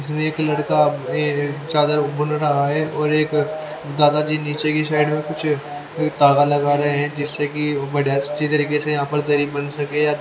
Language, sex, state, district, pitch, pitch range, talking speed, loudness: Hindi, male, Haryana, Charkhi Dadri, 150 Hz, 145-150 Hz, 205 wpm, -19 LUFS